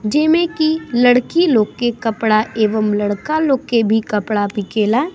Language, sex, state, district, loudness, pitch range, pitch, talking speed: Bhojpuri, female, Bihar, East Champaran, -16 LUFS, 215-295 Hz, 230 Hz, 175 wpm